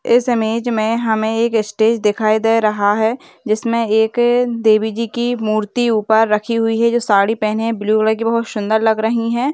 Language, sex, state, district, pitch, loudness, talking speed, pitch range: Hindi, female, Uttar Pradesh, Deoria, 225 Hz, -16 LUFS, 190 wpm, 215-230 Hz